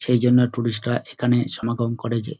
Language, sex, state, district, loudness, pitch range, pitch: Bengali, male, West Bengal, Dakshin Dinajpur, -22 LUFS, 115-125 Hz, 120 Hz